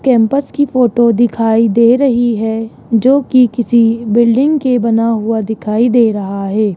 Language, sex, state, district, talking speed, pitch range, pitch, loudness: Hindi, male, Rajasthan, Jaipur, 160 wpm, 225-250 Hz, 235 Hz, -12 LUFS